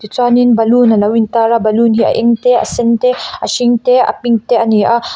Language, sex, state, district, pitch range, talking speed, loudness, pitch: Mizo, female, Mizoram, Aizawl, 225-245 Hz, 245 wpm, -11 LUFS, 235 Hz